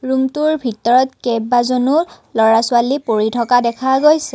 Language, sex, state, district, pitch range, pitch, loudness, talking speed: Assamese, female, Assam, Kamrup Metropolitan, 235-265 Hz, 250 Hz, -15 LUFS, 125 wpm